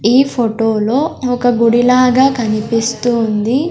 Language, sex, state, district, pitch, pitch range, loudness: Telugu, female, Andhra Pradesh, Sri Satya Sai, 240 Hz, 225-255 Hz, -13 LUFS